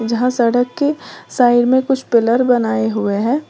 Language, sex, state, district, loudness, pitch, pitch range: Hindi, female, Uttar Pradesh, Lalitpur, -15 LUFS, 245 Hz, 230-260 Hz